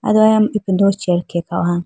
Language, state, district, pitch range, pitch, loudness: Idu Mishmi, Arunachal Pradesh, Lower Dibang Valley, 175-215 Hz, 190 Hz, -16 LUFS